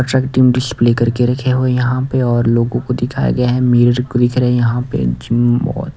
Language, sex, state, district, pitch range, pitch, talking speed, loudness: Hindi, male, Odisha, Nuapada, 120-125 Hz, 125 Hz, 220 wpm, -14 LUFS